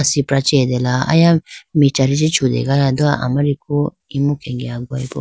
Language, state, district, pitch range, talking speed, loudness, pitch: Idu Mishmi, Arunachal Pradesh, Lower Dibang Valley, 130-145 Hz, 150 wpm, -16 LUFS, 140 Hz